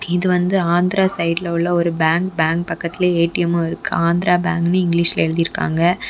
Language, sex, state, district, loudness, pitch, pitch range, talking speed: Tamil, female, Tamil Nadu, Kanyakumari, -17 LUFS, 170 Hz, 170-180 Hz, 165 wpm